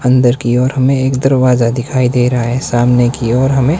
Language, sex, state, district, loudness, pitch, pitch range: Hindi, male, Himachal Pradesh, Shimla, -12 LUFS, 125 Hz, 120-130 Hz